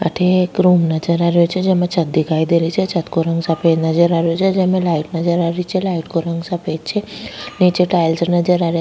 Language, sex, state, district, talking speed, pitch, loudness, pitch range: Rajasthani, female, Rajasthan, Nagaur, 250 wpm, 170 Hz, -16 LUFS, 165-180 Hz